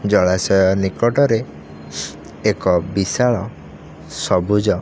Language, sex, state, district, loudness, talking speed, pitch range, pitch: Odia, male, Odisha, Khordha, -18 LUFS, 75 wpm, 85-105 Hz, 95 Hz